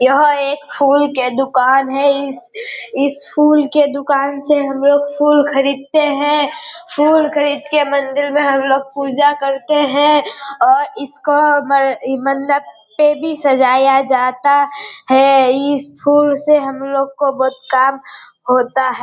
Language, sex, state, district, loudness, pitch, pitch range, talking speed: Hindi, female, Bihar, Kishanganj, -14 LUFS, 280 Hz, 270-295 Hz, 140 wpm